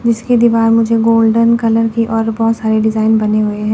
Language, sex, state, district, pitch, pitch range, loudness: Hindi, female, Chandigarh, Chandigarh, 225 Hz, 220-230 Hz, -12 LUFS